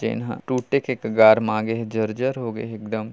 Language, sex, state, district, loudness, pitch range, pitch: Hindi, male, Chhattisgarh, Kabirdham, -22 LUFS, 110-125 Hz, 110 Hz